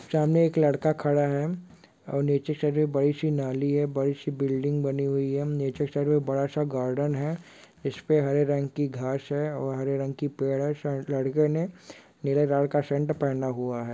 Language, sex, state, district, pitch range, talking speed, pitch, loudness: Hindi, male, Bihar, Kishanganj, 135-150 Hz, 200 wpm, 145 Hz, -27 LUFS